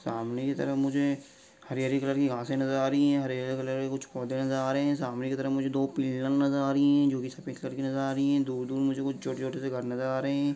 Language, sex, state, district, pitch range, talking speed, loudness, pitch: Hindi, male, Bihar, Saran, 130-140 Hz, 285 wpm, -29 LUFS, 135 Hz